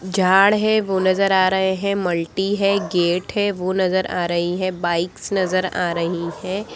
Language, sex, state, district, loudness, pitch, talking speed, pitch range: Hindi, female, Bihar, Saharsa, -19 LUFS, 185 Hz, 185 wpm, 175-195 Hz